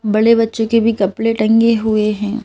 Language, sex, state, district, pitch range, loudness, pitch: Hindi, female, Madhya Pradesh, Bhopal, 215-230 Hz, -14 LUFS, 225 Hz